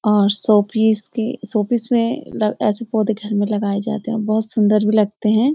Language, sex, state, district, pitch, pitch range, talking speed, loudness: Hindi, female, Uttarakhand, Uttarkashi, 215 Hz, 210-225 Hz, 205 wpm, -17 LUFS